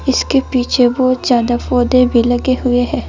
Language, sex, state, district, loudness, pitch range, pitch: Hindi, female, Uttar Pradesh, Saharanpur, -14 LUFS, 245-255 Hz, 250 Hz